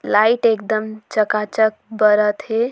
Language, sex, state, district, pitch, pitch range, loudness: Surgujia, female, Chhattisgarh, Sarguja, 215 Hz, 210-225 Hz, -18 LUFS